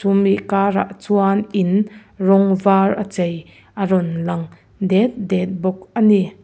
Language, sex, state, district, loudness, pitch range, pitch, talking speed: Mizo, female, Mizoram, Aizawl, -18 LUFS, 185-200 Hz, 195 Hz, 130 wpm